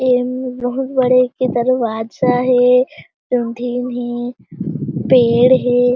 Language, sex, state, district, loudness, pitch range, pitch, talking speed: Chhattisgarhi, female, Chhattisgarh, Jashpur, -16 LUFS, 245-255 Hz, 250 Hz, 100 wpm